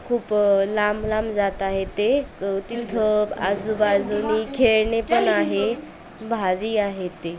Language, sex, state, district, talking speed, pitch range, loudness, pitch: Marathi, female, Maharashtra, Aurangabad, 105 wpm, 195-220 Hz, -22 LUFS, 210 Hz